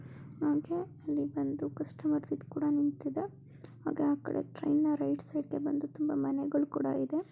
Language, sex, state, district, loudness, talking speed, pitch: Kannada, female, Karnataka, Chamarajanagar, -33 LUFS, 140 wpm, 290 Hz